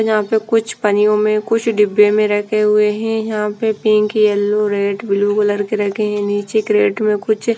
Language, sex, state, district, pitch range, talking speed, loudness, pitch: Hindi, female, Punjab, Fazilka, 205-215 Hz, 205 wpm, -16 LUFS, 210 Hz